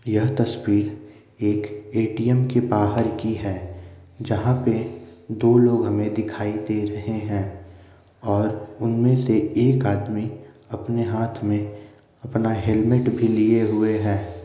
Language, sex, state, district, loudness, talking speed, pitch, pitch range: Maithili, male, Bihar, Begusarai, -22 LUFS, 130 wpm, 110 Hz, 105-115 Hz